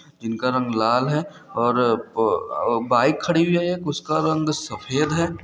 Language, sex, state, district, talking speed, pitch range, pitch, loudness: Hindi, male, Bihar, Samastipur, 165 wpm, 120-160 Hz, 150 Hz, -22 LUFS